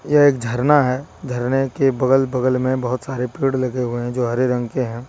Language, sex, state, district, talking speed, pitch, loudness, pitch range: Hindi, male, Jharkhand, Deoghar, 235 wpm, 130 Hz, -19 LUFS, 125-135 Hz